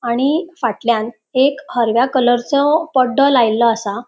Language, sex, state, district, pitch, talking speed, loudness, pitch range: Konkani, female, Goa, North and South Goa, 245 Hz, 115 wpm, -16 LUFS, 235-275 Hz